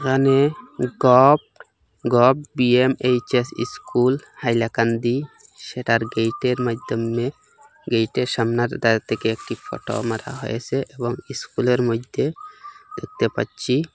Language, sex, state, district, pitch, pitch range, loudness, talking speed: Bengali, male, Assam, Hailakandi, 125 Hz, 115-135 Hz, -21 LUFS, 90 wpm